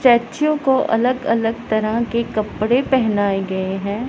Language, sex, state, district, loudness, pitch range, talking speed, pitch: Hindi, female, Punjab, Pathankot, -19 LUFS, 215-255 Hz, 145 wpm, 230 Hz